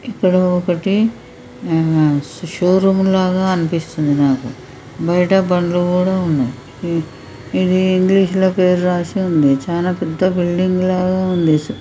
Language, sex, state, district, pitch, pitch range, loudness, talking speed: Telugu, male, Andhra Pradesh, Chittoor, 180 Hz, 160-185 Hz, -16 LUFS, 110 wpm